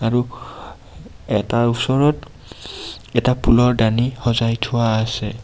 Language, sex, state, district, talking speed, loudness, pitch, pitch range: Assamese, male, Assam, Kamrup Metropolitan, 100 wpm, -18 LUFS, 120 Hz, 115-125 Hz